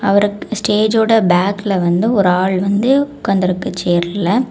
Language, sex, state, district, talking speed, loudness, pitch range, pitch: Tamil, female, Tamil Nadu, Kanyakumari, 135 wpm, -15 LUFS, 185-220 Hz, 200 Hz